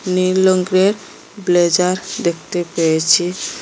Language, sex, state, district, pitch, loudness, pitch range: Bengali, female, Assam, Hailakandi, 180 Hz, -16 LUFS, 175-185 Hz